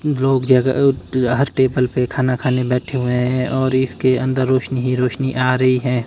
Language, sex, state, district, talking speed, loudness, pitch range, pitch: Hindi, male, Himachal Pradesh, Shimla, 190 wpm, -17 LUFS, 125-130 Hz, 130 Hz